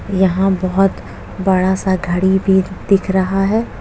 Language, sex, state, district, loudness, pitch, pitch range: Hindi, female, Jharkhand, Jamtara, -16 LUFS, 190 Hz, 185-195 Hz